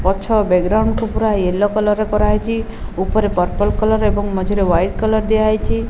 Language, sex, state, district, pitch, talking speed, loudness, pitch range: Odia, female, Odisha, Malkangiri, 210 Hz, 175 wpm, -17 LUFS, 190-215 Hz